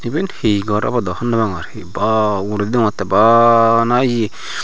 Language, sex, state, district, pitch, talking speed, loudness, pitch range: Chakma, male, Tripura, Unakoti, 115 Hz, 170 wpm, -15 LUFS, 105-120 Hz